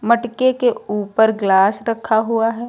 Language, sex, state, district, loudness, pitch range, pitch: Hindi, female, Uttar Pradesh, Lucknow, -17 LUFS, 210-235 Hz, 225 Hz